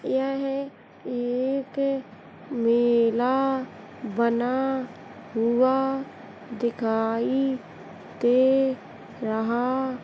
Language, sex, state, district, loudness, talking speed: Hindi, female, Uttar Pradesh, Jalaun, -25 LUFS, 55 wpm